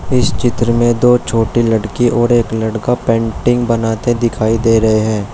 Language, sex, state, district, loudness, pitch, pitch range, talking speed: Hindi, male, Uttar Pradesh, Shamli, -14 LUFS, 115 Hz, 110-120 Hz, 170 wpm